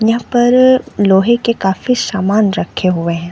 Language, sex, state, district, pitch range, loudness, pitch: Hindi, female, Chhattisgarh, Bilaspur, 190-240 Hz, -13 LUFS, 215 Hz